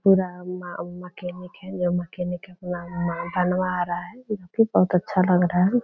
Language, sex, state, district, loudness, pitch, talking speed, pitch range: Hindi, female, Bihar, Purnia, -25 LUFS, 180 Hz, 175 wpm, 175-185 Hz